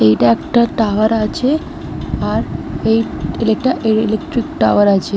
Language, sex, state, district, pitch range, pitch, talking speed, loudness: Bengali, female, West Bengal, Malda, 205-235 Hz, 220 Hz, 130 wpm, -16 LUFS